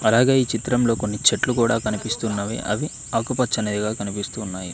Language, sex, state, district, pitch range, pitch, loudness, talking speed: Telugu, male, Telangana, Mahabubabad, 105-120 Hz, 115 Hz, -22 LUFS, 125 wpm